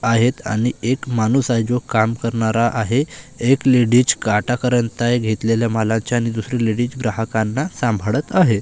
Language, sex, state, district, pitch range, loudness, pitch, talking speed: Marathi, male, Maharashtra, Gondia, 110-125 Hz, -18 LUFS, 115 Hz, 155 wpm